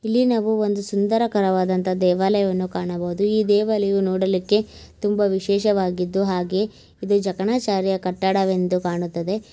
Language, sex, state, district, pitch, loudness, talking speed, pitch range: Kannada, female, Karnataka, Belgaum, 195 Hz, -21 LUFS, 120 wpm, 185-205 Hz